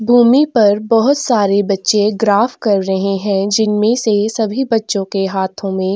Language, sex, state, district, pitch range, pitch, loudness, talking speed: Hindi, female, Chhattisgarh, Sukma, 195-225 Hz, 210 Hz, -14 LUFS, 170 wpm